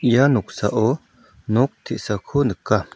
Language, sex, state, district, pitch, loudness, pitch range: Garo, male, Meghalaya, South Garo Hills, 120 Hz, -21 LUFS, 105-135 Hz